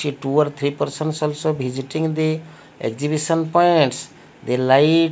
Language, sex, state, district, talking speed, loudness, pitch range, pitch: English, male, Odisha, Malkangiri, 150 wpm, -20 LUFS, 140-155 Hz, 150 Hz